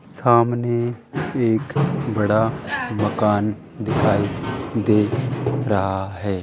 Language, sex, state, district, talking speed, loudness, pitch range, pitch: Hindi, male, Rajasthan, Jaipur, 75 wpm, -21 LUFS, 105-135 Hz, 115 Hz